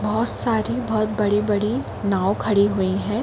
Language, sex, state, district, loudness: Hindi, female, Uttar Pradesh, Jalaun, -19 LUFS